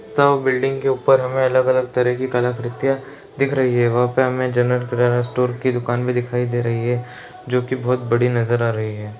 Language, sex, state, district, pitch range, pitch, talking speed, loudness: Hindi, male, Bihar, Darbhanga, 120-130 Hz, 125 Hz, 230 wpm, -19 LUFS